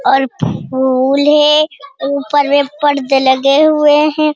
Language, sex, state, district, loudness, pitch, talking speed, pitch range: Hindi, female, Bihar, Jamui, -12 LUFS, 285 Hz, 140 wpm, 270-300 Hz